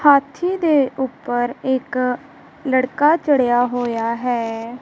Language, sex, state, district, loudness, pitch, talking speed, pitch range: Punjabi, female, Punjab, Kapurthala, -19 LUFS, 255 Hz, 100 wpm, 245-285 Hz